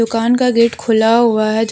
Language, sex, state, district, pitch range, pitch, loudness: Hindi, female, Jharkhand, Deoghar, 220-235 Hz, 230 Hz, -13 LUFS